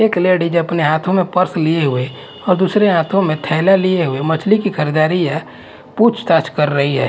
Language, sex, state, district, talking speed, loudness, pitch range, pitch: Hindi, male, Punjab, Fazilka, 195 wpm, -15 LUFS, 155-185 Hz, 170 Hz